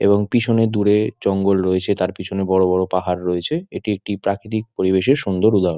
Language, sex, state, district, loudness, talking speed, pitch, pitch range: Bengali, male, West Bengal, Dakshin Dinajpur, -19 LUFS, 175 wpm, 100 Hz, 95-110 Hz